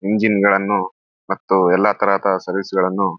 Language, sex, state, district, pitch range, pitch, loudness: Kannada, male, Karnataka, Raichur, 95-100 Hz, 100 Hz, -17 LUFS